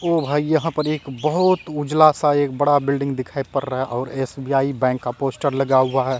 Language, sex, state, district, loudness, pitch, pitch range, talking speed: Hindi, male, Bihar, Katihar, -20 LUFS, 140 Hz, 135-150 Hz, 220 wpm